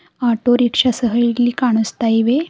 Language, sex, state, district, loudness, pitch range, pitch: Kannada, female, Karnataka, Bidar, -16 LUFS, 230-250 Hz, 240 Hz